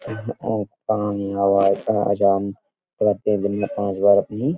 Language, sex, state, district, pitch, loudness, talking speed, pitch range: Hindi, male, Uttar Pradesh, Etah, 100 Hz, -21 LUFS, 145 wpm, 100-105 Hz